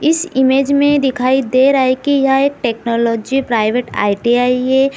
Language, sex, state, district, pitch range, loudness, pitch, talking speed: Hindi, female, Bihar, Kishanganj, 240-275 Hz, -14 LUFS, 260 Hz, 170 wpm